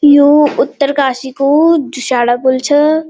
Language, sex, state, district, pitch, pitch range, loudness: Garhwali, female, Uttarakhand, Uttarkashi, 285 Hz, 260-295 Hz, -11 LUFS